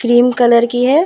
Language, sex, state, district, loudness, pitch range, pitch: Hindi, female, Bihar, Vaishali, -12 LUFS, 240-250 Hz, 245 Hz